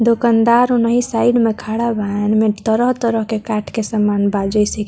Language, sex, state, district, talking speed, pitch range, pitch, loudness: Bhojpuri, female, Bihar, Muzaffarpur, 195 wpm, 210-235 Hz, 225 Hz, -16 LUFS